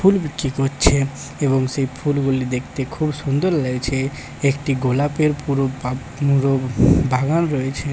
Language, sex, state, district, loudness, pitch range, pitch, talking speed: Bengali, male, West Bengal, Paschim Medinipur, -20 LUFS, 135-145 Hz, 135 Hz, 130 wpm